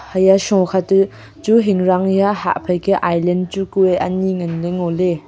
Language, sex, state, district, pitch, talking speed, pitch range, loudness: Wancho, female, Arunachal Pradesh, Longding, 185 Hz, 170 wpm, 175-195 Hz, -16 LUFS